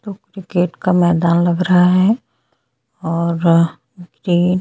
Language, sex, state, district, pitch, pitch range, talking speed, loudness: Hindi, female, Chhattisgarh, Bastar, 175 Hz, 170-185 Hz, 105 wpm, -15 LUFS